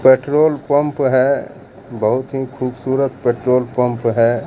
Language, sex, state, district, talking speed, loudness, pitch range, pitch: Hindi, male, Bihar, Katihar, 120 wpm, -17 LUFS, 125-140 Hz, 130 Hz